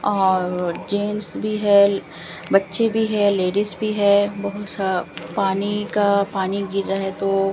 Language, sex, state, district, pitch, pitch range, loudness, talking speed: Hindi, female, Bihar, Katihar, 200 Hz, 195-205 Hz, -20 LUFS, 160 wpm